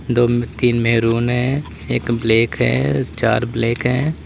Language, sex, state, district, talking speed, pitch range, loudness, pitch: Hindi, male, Uttar Pradesh, Lalitpur, 140 wpm, 115-125 Hz, -18 LUFS, 120 Hz